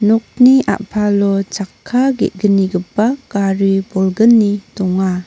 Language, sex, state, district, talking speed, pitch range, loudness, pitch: Garo, female, Meghalaya, North Garo Hills, 80 wpm, 195-225 Hz, -14 LUFS, 205 Hz